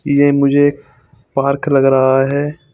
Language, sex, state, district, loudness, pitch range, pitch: Hindi, male, Chandigarh, Chandigarh, -14 LUFS, 135-145 Hz, 140 Hz